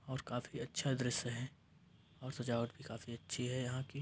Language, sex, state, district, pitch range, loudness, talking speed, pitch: Hindi, male, Uttar Pradesh, Varanasi, 120-130 Hz, -41 LUFS, 210 wpm, 125 Hz